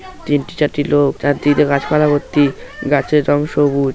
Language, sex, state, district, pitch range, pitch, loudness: Bengali, male, West Bengal, Paschim Medinipur, 140-150 Hz, 145 Hz, -15 LUFS